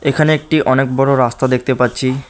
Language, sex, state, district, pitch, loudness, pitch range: Bengali, male, West Bengal, Alipurduar, 130 Hz, -14 LUFS, 130-140 Hz